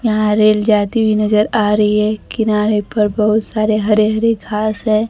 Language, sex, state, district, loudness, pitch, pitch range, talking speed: Hindi, female, Bihar, Kaimur, -15 LUFS, 215 Hz, 210-215 Hz, 190 wpm